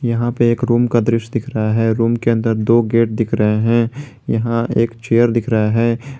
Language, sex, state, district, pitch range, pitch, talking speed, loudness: Hindi, male, Jharkhand, Garhwa, 115-120 Hz, 115 Hz, 220 wpm, -16 LUFS